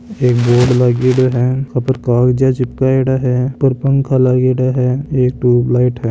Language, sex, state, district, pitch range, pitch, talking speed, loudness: Marwari, male, Rajasthan, Nagaur, 125-130 Hz, 130 Hz, 155 wpm, -14 LUFS